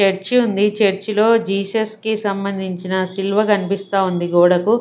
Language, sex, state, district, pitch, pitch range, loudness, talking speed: Telugu, female, Andhra Pradesh, Sri Satya Sai, 200 Hz, 190-215 Hz, -18 LUFS, 125 wpm